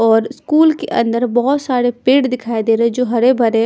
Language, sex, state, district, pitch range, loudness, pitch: Hindi, female, Punjab, Pathankot, 230-260 Hz, -15 LUFS, 245 Hz